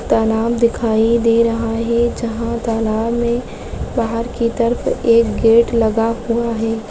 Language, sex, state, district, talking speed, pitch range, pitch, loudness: Hindi, female, Maharashtra, Solapur, 140 wpm, 225-235 Hz, 230 Hz, -16 LUFS